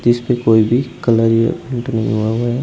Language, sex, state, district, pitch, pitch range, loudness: Hindi, male, Uttar Pradesh, Shamli, 120 Hz, 115-125 Hz, -16 LUFS